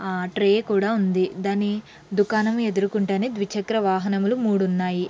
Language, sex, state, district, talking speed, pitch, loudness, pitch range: Telugu, female, Andhra Pradesh, Srikakulam, 140 wpm, 200 Hz, -23 LUFS, 190-215 Hz